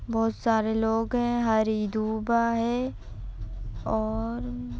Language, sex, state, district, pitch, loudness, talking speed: Hindi, female, Uttar Pradesh, Etah, 220 Hz, -27 LUFS, 125 wpm